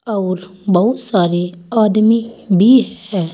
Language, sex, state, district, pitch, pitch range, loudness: Hindi, female, Uttar Pradesh, Saharanpur, 205 Hz, 185-230 Hz, -15 LUFS